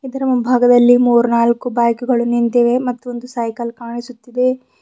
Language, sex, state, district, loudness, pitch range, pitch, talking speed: Kannada, female, Karnataka, Bidar, -15 LUFS, 235-250 Hz, 245 Hz, 110 wpm